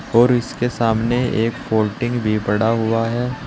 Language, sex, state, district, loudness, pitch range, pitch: Hindi, male, Uttar Pradesh, Saharanpur, -19 LUFS, 110-120 Hz, 115 Hz